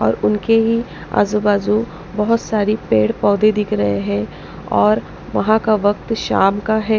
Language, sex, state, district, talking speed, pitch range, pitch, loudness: Hindi, female, Punjab, Pathankot, 155 wpm, 195-220 Hz, 210 Hz, -17 LUFS